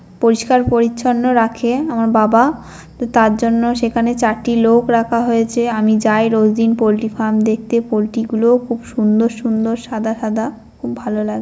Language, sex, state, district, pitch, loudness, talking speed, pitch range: Bengali, female, West Bengal, North 24 Parganas, 230 Hz, -15 LUFS, 155 wpm, 220-235 Hz